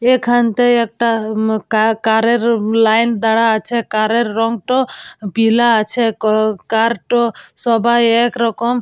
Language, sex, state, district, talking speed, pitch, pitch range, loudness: Bengali, female, West Bengal, Purulia, 125 wpm, 230 Hz, 220-235 Hz, -15 LUFS